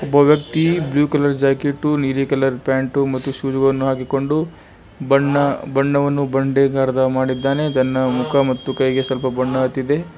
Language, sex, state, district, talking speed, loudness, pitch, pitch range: Kannada, male, Karnataka, Bijapur, 130 wpm, -18 LUFS, 135 Hz, 130-145 Hz